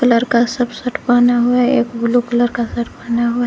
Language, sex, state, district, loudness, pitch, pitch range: Hindi, female, Jharkhand, Garhwa, -16 LUFS, 240 Hz, 235-245 Hz